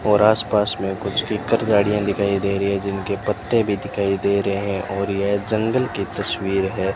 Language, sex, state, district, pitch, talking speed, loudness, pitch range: Hindi, male, Rajasthan, Bikaner, 100 Hz, 200 wpm, -21 LUFS, 100-105 Hz